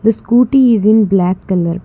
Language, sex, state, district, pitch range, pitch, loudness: English, female, Karnataka, Bangalore, 185-235 Hz, 215 Hz, -12 LUFS